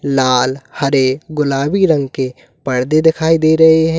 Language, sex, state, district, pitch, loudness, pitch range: Hindi, male, Uttar Pradesh, Lalitpur, 140 Hz, -14 LUFS, 130-160 Hz